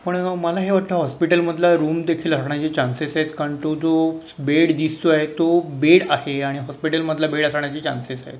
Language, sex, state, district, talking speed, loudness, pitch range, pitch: Marathi, male, Maharashtra, Mumbai Suburban, 185 wpm, -20 LUFS, 150-170 Hz, 155 Hz